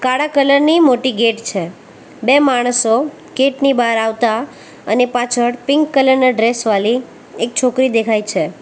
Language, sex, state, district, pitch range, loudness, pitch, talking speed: Gujarati, female, Gujarat, Valsad, 225-265 Hz, -14 LUFS, 245 Hz, 160 wpm